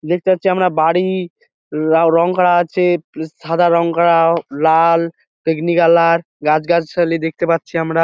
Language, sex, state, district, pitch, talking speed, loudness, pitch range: Bengali, male, West Bengal, Dakshin Dinajpur, 170 Hz, 155 wpm, -15 LUFS, 160-175 Hz